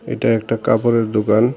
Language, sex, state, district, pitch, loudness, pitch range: Bengali, male, Tripura, Dhalai, 115 Hz, -17 LUFS, 110-115 Hz